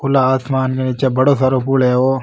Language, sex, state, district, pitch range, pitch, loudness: Rajasthani, male, Rajasthan, Nagaur, 130-135 Hz, 130 Hz, -15 LUFS